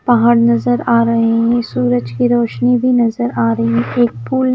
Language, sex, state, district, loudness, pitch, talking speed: Hindi, female, Himachal Pradesh, Shimla, -14 LUFS, 230 Hz, 210 wpm